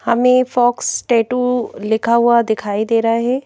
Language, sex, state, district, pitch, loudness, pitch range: Hindi, female, Madhya Pradesh, Bhopal, 235 Hz, -16 LUFS, 225-250 Hz